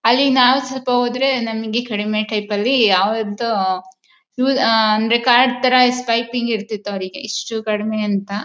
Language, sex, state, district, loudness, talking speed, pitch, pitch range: Kannada, female, Karnataka, Mysore, -17 LUFS, 135 wpm, 230 Hz, 215-250 Hz